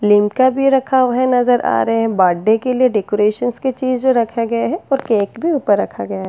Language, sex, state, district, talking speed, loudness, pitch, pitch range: Hindi, female, Delhi, New Delhi, 250 wpm, -16 LUFS, 240 Hz, 210-255 Hz